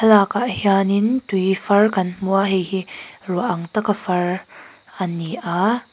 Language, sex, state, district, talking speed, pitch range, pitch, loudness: Mizo, female, Mizoram, Aizawl, 140 wpm, 180-210 Hz, 195 Hz, -20 LUFS